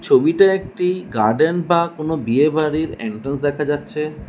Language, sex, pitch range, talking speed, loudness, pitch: Bengali, male, 145-175 Hz, 140 wpm, -18 LUFS, 155 Hz